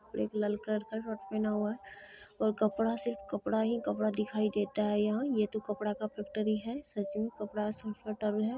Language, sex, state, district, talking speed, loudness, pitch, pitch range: Maithili, female, Bihar, Supaul, 195 wpm, -34 LUFS, 215 Hz, 210-220 Hz